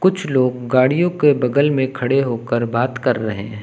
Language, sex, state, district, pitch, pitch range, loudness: Hindi, male, Uttar Pradesh, Lucknow, 130 Hz, 120-145 Hz, -18 LUFS